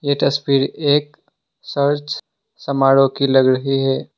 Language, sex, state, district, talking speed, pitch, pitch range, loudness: Hindi, male, Assam, Sonitpur, 130 wpm, 140 Hz, 135-145 Hz, -17 LUFS